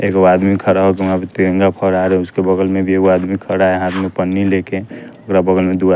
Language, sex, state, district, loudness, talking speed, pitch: Hindi, male, Bihar, West Champaran, -14 LUFS, 270 wpm, 95 Hz